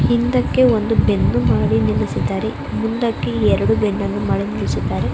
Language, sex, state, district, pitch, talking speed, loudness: Kannada, female, Karnataka, Mysore, 110 Hz, 115 wpm, -18 LUFS